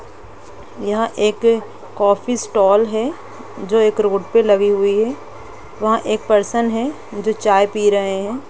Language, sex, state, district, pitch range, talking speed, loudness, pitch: Hindi, female, Uttar Pradesh, Jalaun, 205-230 Hz, 150 wpm, -17 LUFS, 215 Hz